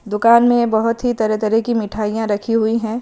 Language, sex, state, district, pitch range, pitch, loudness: Hindi, female, Himachal Pradesh, Shimla, 215-235 Hz, 225 Hz, -16 LUFS